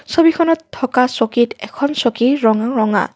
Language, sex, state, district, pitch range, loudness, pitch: Assamese, female, Assam, Kamrup Metropolitan, 230-295 Hz, -16 LUFS, 250 Hz